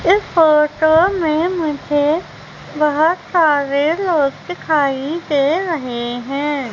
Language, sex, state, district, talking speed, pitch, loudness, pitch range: Hindi, female, Madhya Pradesh, Umaria, 100 wpm, 305 Hz, -16 LUFS, 285-335 Hz